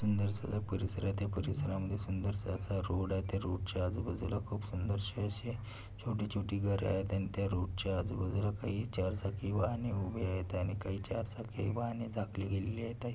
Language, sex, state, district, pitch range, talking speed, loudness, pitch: Marathi, male, Maharashtra, Pune, 95-105 Hz, 170 wpm, -37 LUFS, 100 Hz